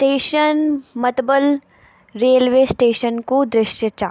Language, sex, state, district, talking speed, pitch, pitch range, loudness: Garhwali, female, Uttarakhand, Tehri Garhwal, 100 wpm, 260 Hz, 235-275 Hz, -17 LUFS